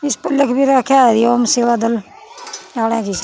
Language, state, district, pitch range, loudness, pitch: Haryanvi, Haryana, Rohtak, 230-280 Hz, -14 LUFS, 245 Hz